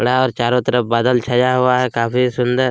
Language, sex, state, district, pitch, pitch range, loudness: Hindi, male, Chhattisgarh, Kabirdham, 125 Hz, 120-125 Hz, -16 LUFS